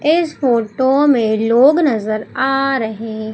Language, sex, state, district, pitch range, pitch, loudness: Hindi, female, Madhya Pradesh, Umaria, 220-275 Hz, 255 Hz, -15 LUFS